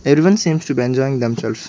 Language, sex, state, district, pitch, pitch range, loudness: English, male, Arunachal Pradesh, Lower Dibang Valley, 135 Hz, 125-160 Hz, -16 LUFS